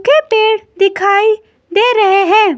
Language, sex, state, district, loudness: Hindi, female, Himachal Pradesh, Shimla, -11 LUFS